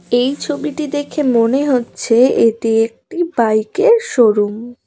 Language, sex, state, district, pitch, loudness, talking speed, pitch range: Bengali, female, West Bengal, Cooch Behar, 245 Hz, -15 LUFS, 125 wpm, 230-295 Hz